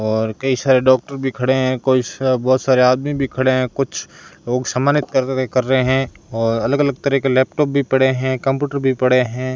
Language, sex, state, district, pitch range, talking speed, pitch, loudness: Hindi, male, Rajasthan, Bikaner, 130-135 Hz, 220 wpm, 130 Hz, -17 LUFS